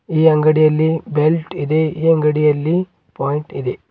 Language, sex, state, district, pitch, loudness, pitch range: Kannada, male, Karnataka, Bidar, 155 Hz, -16 LUFS, 150-165 Hz